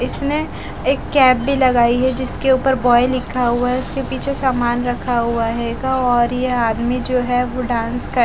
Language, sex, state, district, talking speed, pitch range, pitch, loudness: Hindi, female, Bihar, West Champaran, 195 wpm, 240-260 Hz, 250 Hz, -17 LUFS